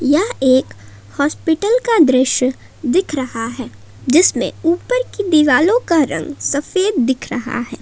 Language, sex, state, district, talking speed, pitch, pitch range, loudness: Hindi, female, Jharkhand, Palamu, 140 wpm, 285 Hz, 255-345 Hz, -16 LUFS